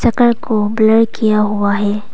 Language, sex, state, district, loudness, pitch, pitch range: Hindi, female, Arunachal Pradesh, Papum Pare, -14 LUFS, 215 Hz, 210-225 Hz